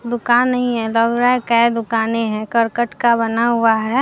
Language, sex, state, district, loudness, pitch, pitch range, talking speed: Hindi, female, Bihar, Vaishali, -16 LUFS, 235 Hz, 230-240 Hz, 150 wpm